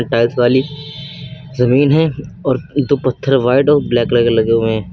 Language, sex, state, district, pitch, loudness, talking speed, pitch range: Hindi, male, Uttar Pradesh, Lucknow, 130 Hz, -14 LUFS, 180 wpm, 120-145 Hz